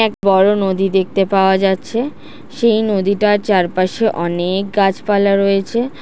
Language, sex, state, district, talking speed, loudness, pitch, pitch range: Bengali, female, West Bengal, Jhargram, 140 wpm, -15 LUFS, 195 Hz, 190-210 Hz